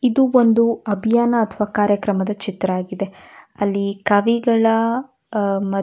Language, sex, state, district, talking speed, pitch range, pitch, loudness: Kannada, female, Karnataka, Dakshina Kannada, 115 wpm, 200-230 Hz, 210 Hz, -19 LUFS